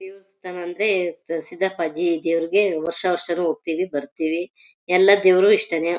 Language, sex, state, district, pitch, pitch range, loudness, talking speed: Kannada, female, Karnataka, Mysore, 175 Hz, 165-190 Hz, -21 LUFS, 110 wpm